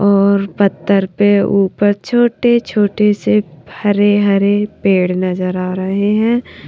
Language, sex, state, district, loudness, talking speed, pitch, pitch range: Hindi, female, Haryana, Charkhi Dadri, -14 LUFS, 125 wpm, 200 Hz, 195-210 Hz